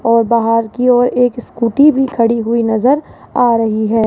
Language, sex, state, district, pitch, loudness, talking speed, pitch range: Hindi, female, Rajasthan, Jaipur, 235 Hz, -13 LUFS, 190 wpm, 230-245 Hz